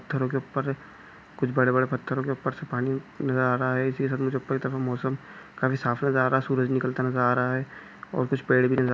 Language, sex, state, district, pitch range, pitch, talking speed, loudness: Hindi, male, Chhattisgarh, Sukma, 130-135 Hz, 130 Hz, 235 wpm, -26 LUFS